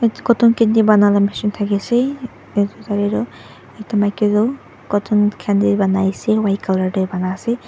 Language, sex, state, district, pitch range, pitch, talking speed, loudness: Nagamese, female, Nagaland, Dimapur, 195-220 Hz, 205 Hz, 125 wpm, -17 LUFS